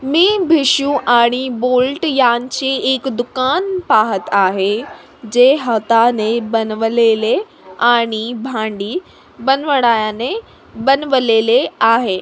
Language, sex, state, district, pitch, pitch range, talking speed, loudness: Marathi, female, Maharashtra, Sindhudurg, 245 Hz, 225-275 Hz, 80 wpm, -15 LUFS